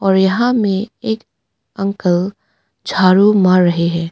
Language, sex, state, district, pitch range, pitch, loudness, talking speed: Hindi, female, Arunachal Pradesh, Papum Pare, 185-210 Hz, 190 Hz, -15 LUFS, 130 wpm